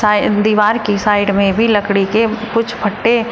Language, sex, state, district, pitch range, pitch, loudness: Hindi, female, Uttar Pradesh, Shamli, 205-230 Hz, 210 Hz, -14 LUFS